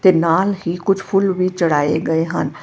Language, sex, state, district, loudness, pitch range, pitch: Punjabi, female, Karnataka, Bangalore, -17 LUFS, 165-195 Hz, 180 Hz